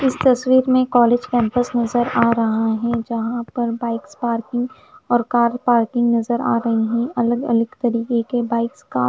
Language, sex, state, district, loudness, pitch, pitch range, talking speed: Hindi, female, Punjab, Fazilka, -19 LUFS, 235 Hz, 230-245 Hz, 165 wpm